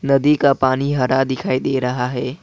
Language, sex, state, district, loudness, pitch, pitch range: Hindi, male, Assam, Kamrup Metropolitan, -18 LUFS, 130 Hz, 125-140 Hz